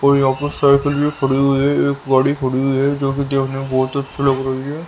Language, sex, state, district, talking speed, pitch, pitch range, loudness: Hindi, male, Haryana, Rohtak, 270 wpm, 140 Hz, 135-140 Hz, -17 LUFS